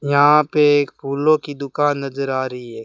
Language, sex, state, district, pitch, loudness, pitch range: Hindi, male, Rajasthan, Bikaner, 140 Hz, -18 LUFS, 135-145 Hz